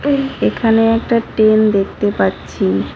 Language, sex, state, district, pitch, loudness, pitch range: Bengali, female, West Bengal, Cooch Behar, 215 Hz, -15 LUFS, 195-230 Hz